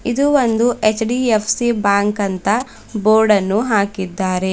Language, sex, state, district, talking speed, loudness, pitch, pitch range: Kannada, female, Karnataka, Bidar, 105 wpm, -16 LUFS, 215 Hz, 200-235 Hz